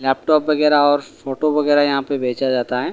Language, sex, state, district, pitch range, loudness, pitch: Hindi, male, Delhi, New Delhi, 135-150 Hz, -17 LUFS, 140 Hz